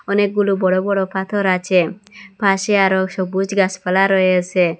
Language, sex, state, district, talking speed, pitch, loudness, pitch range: Bengali, female, Assam, Hailakandi, 125 wpm, 190 Hz, -17 LUFS, 185-200 Hz